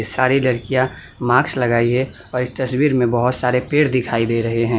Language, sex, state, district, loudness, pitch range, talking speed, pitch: Hindi, male, Gujarat, Valsad, -18 LUFS, 120-130 Hz, 200 wpm, 125 Hz